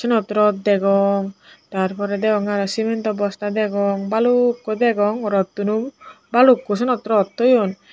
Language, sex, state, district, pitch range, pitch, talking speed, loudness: Chakma, female, Tripura, Dhalai, 200-230 Hz, 210 Hz, 145 wpm, -19 LUFS